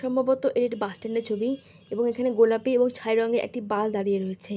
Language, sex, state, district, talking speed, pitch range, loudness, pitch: Bengali, female, West Bengal, Dakshin Dinajpur, 210 wpm, 210-250 Hz, -25 LUFS, 230 Hz